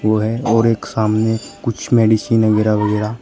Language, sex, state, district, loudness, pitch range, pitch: Hindi, male, Uttar Pradesh, Shamli, -16 LUFS, 105-115 Hz, 110 Hz